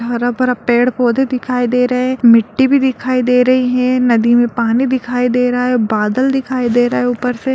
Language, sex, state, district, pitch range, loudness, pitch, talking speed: Hindi, female, Bihar, Lakhisarai, 240-255 Hz, -14 LUFS, 250 Hz, 205 wpm